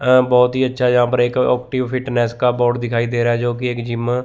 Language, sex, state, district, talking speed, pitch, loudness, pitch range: Hindi, male, Chandigarh, Chandigarh, 270 wpm, 125 Hz, -17 LUFS, 120-125 Hz